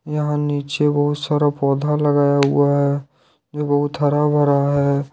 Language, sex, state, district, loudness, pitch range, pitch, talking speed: Hindi, male, Jharkhand, Ranchi, -18 LUFS, 140-150 Hz, 145 Hz, 150 wpm